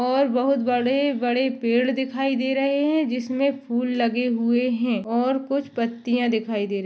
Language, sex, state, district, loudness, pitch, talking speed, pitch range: Hindi, female, Maharashtra, Dhule, -23 LUFS, 250 Hz, 175 wpm, 240-270 Hz